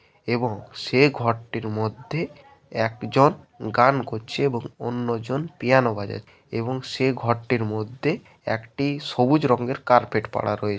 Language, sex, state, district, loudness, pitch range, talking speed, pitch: Bengali, male, West Bengal, Paschim Medinipur, -24 LUFS, 110-135 Hz, 115 wpm, 120 Hz